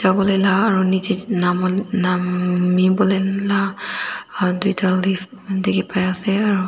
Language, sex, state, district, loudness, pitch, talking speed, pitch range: Nagamese, female, Nagaland, Dimapur, -19 LUFS, 190 Hz, 115 wpm, 185-200 Hz